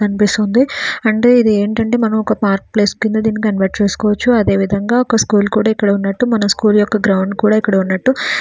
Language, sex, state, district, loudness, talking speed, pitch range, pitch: Telugu, female, Andhra Pradesh, Srikakulam, -14 LUFS, 100 wpm, 200-225 Hz, 210 Hz